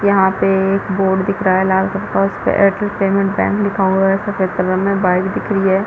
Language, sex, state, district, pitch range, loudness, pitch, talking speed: Hindi, female, Chhattisgarh, Rajnandgaon, 190-200 Hz, -16 LUFS, 195 Hz, 235 wpm